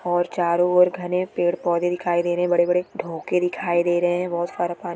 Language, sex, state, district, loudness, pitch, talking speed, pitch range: Hindi, female, Chhattisgarh, Jashpur, -22 LUFS, 175 Hz, 240 wpm, 175-180 Hz